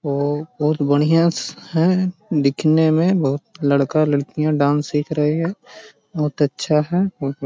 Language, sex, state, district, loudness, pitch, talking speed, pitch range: Magahi, male, Bihar, Jahanabad, -19 LUFS, 150 Hz, 155 wpm, 145-165 Hz